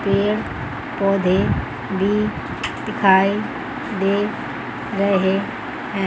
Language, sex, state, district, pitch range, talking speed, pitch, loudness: Hindi, female, Chandigarh, Chandigarh, 195-210 Hz, 70 wpm, 200 Hz, -21 LUFS